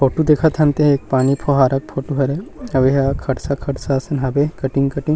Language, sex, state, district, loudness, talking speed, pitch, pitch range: Chhattisgarhi, male, Chhattisgarh, Rajnandgaon, -17 LUFS, 185 wpm, 140 Hz, 135-150 Hz